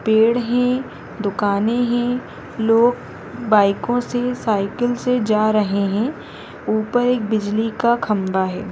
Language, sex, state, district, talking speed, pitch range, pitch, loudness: Hindi, female, Rajasthan, Nagaur, 125 wpm, 210-245 Hz, 225 Hz, -19 LUFS